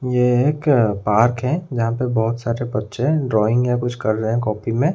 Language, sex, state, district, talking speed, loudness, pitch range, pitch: Hindi, male, Odisha, Khordha, 205 wpm, -19 LUFS, 110-125 Hz, 120 Hz